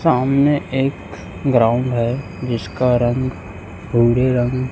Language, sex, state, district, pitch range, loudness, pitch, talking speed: Hindi, male, Chhattisgarh, Raipur, 110-130 Hz, -18 LUFS, 120 Hz, 90 wpm